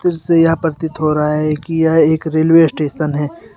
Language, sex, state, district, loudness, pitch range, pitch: Hindi, male, Jharkhand, Deoghar, -14 LUFS, 155-165 Hz, 160 Hz